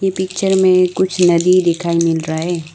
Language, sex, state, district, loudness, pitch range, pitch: Hindi, female, Arunachal Pradesh, Lower Dibang Valley, -14 LUFS, 170-185 Hz, 180 Hz